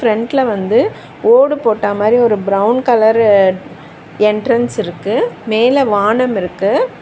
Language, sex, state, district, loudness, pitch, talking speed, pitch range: Tamil, female, Tamil Nadu, Chennai, -13 LUFS, 220 Hz, 110 wpm, 200-245 Hz